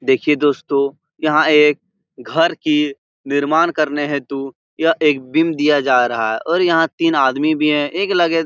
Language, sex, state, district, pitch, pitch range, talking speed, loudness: Hindi, male, Bihar, Jahanabad, 150 Hz, 140-165 Hz, 170 wpm, -16 LUFS